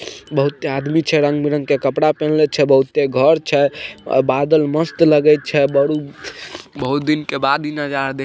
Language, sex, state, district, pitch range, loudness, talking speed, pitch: Maithili, male, Bihar, Samastipur, 140-150 Hz, -16 LUFS, 180 wpm, 145 Hz